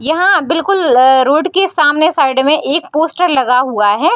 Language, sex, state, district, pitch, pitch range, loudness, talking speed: Hindi, female, Bihar, Darbhanga, 305 Hz, 265-335 Hz, -11 LUFS, 185 wpm